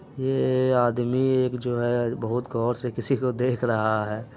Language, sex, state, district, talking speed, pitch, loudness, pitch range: Hindi, male, Bihar, Araria, 180 wpm, 125 Hz, -25 LUFS, 120-130 Hz